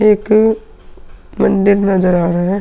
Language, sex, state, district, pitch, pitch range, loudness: Hindi, male, Uttar Pradesh, Hamirpur, 200 Hz, 185-215 Hz, -13 LUFS